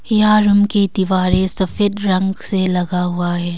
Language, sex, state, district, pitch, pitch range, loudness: Hindi, female, Arunachal Pradesh, Longding, 190 Hz, 180-205 Hz, -15 LUFS